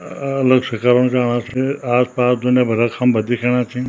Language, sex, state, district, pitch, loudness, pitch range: Garhwali, male, Uttarakhand, Tehri Garhwal, 125 Hz, -17 LUFS, 120-125 Hz